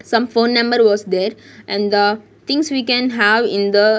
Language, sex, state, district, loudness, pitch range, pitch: English, female, Punjab, Kapurthala, -16 LUFS, 205-235 Hz, 220 Hz